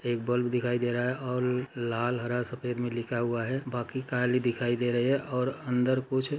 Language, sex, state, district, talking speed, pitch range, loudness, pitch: Hindi, male, Chhattisgarh, Bastar, 205 wpm, 120-125 Hz, -30 LUFS, 125 Hz